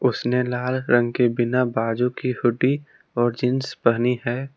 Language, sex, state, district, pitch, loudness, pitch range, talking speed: Hindi, male, Jharkhand, Palamu, 125 Hz, -22 LUFS, 120-130 Hz, 155 wpm